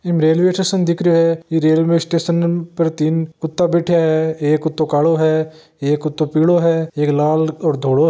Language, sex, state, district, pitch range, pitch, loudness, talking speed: Marwari, male, Rajasthan, Nagaur, 155-170 Hz, 160 Hz, -16 LUFS, 200 wpm